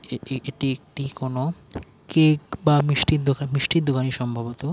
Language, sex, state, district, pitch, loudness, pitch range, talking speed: Bengali, male, West Bengal, Jhargram, 140 Hz, -23 LUFS, 130-150 Hz, 140 wpm